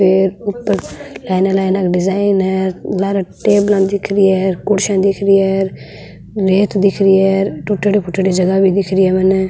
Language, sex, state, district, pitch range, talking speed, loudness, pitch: Marwari, female, Rajasthan, Nagaur, 190-200 Hz, 165 wpm, -14 LUFS, 195 Hz